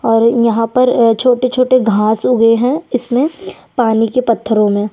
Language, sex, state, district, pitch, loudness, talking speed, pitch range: Hindi, female, Chhattisgarh, Sukma, 235 Hz, -13 LUFS, 145 wpm, 225-255 Hz